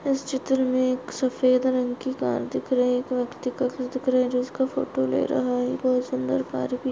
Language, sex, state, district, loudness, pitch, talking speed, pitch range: Hindi, female, Maharashtra, Solapur, -25 LUFS, 255 Hz, 235 wpm, 250-260 Hz